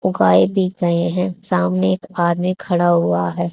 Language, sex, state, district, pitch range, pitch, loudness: Hindi, female, Haryana, Charkhi Dadri, 130-180 Hz, 175 Hz, -17 LUFS